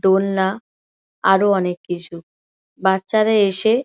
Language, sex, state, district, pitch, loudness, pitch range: Bengali, female, West Bengal, Kolkata, 190 Hz, -18 LUFS, 190-210 Hz